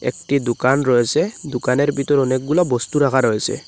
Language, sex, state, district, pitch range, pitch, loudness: Bengali, male, Assam, Hailakandi, 125-145 Hz, 135 Hz, -18 LUFS